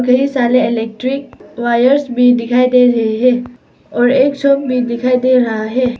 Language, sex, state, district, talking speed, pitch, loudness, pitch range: Hindi, female, Arunachal Pradesh, Papum Pare, 170 wpm, 250 Hz, -13 LUFS, 240-255 Hz